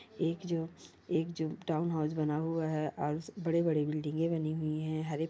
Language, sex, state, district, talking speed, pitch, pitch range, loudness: Hindi, male, Chhattisgarh, Bilaspur, 215 wpm, 160 Hz, 155-165 Hz, -34 LUFS